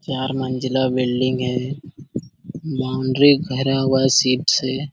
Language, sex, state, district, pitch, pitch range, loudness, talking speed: Hindi, male, Jharkhand, Sahebganj, 130 Hz, 130-140 Hz, -19 LUFS, 120 wpm